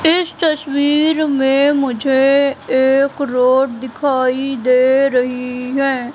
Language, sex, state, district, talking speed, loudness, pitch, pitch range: Hindi, female, Madhya Pradesh, Katni, 100 wpm, -15 LUFS, 270 Hz, 255-280 Hz